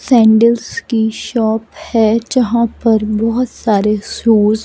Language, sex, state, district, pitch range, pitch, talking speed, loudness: Hindi, female, Madhya Pradesh, Katni, 220-235 Hz, 225 Hz, 130 wpm, -14 LUFS